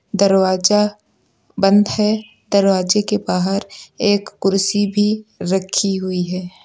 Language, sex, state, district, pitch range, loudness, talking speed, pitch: Hindi, male, Uttar Pradesh, Lucknow, 190-210 Hz, -17 LUFS, 110 wpm, 200 Hz